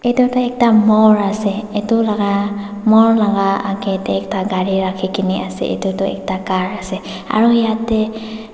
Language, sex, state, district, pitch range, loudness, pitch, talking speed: Nagamese, female, Nagaland, Dimapur, 195-220 Hz, -16 LUFS, 205 Hz, 150 wpm